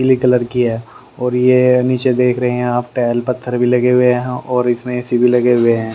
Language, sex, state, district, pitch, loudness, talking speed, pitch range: Hindi, male, Haryana, Rohtak, 125 Hz, -15 LUFS, 240 wpm, 120-125 Hz